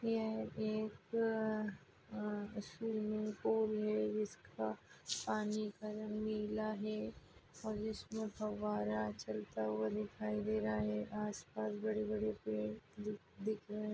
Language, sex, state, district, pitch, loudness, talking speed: Hindi, male, Maharashtra, Pune, 210 Hz, -41 LUFS, 120 wpm